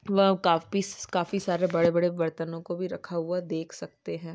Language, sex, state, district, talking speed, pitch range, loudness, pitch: Hindi, female, Maharashtra, Nagpur, 180 wpm, 165-185 Hz, -28 LUFS, 175 Hz